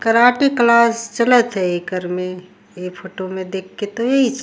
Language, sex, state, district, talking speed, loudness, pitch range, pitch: Surgujia, female, Chhattisgarh, Sarguja, 175 wpm, -17 LUFS, 185-235 Hz, 205 Hz